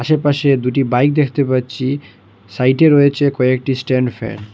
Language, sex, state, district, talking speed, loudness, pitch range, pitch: Bengali, male, Assam, Hailakandi, 145 wpm, -15 LUFS, 125-140 Hz, 130 Hz